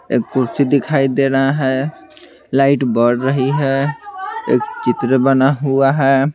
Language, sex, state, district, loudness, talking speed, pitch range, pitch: Hindi, male, Bihar, Patna, -16 LUFS, 140 wpm, 130-140 Hz, 135 Hz